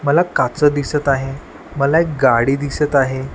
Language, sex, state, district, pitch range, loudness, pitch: Marathi, male, Maharashtra, Washim, 135-150 Hz, -16 LUFS, 140 Hz